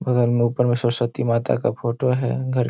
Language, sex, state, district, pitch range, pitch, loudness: Hindi, male, Bihar, Darbhanga, 120-125 Hz, 120 Hz, -21 LUFS